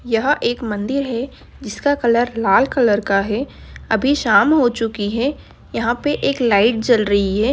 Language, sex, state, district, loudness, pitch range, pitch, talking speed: Hindi, female, Bihar, Darbhanga, -17 LUFS, 215-255 Hz, 235 Hz, 175 wpm